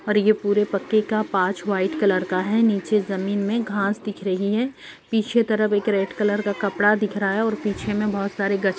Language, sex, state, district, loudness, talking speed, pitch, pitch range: Hindi, female, Jharkhand, Sahebganj, -22 LUFS, 225 wpm, 205 Hz, 195-215 Hz